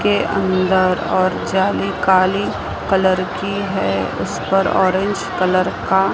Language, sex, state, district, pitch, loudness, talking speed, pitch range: Hindi, female, Maharashtra, Mumbai Suburban, 190 Hz, -17 LUFS, 125 wpm, 185-195 Hz